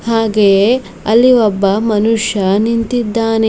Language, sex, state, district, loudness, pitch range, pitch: Kannada, female, Karnataka, Bidar, -12 LUFS, 210-230 Hz, 225 Hz